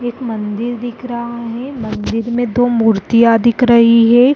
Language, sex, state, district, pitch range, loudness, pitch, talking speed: Hindi, female, Chhattisgarh, Rajnandgaon, 230-245 Hz, -14 LUFS, 235 Hz, 165 wpm